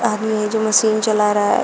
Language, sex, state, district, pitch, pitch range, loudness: Hindi, female, Uttar Pradesh, Shamli, 215 Hz, 210-220 Hz, -17 LUFS